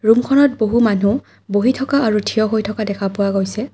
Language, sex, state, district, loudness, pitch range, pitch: Assamese, female, Assam, Kamrup Metropolitan, -17 LUFS, 205-240 Hz, 220 Hz